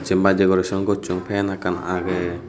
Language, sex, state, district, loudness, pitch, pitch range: Chakma, male, Tripura, Unakoti, -21 LUFS, 95 Hz, 90-100 Hz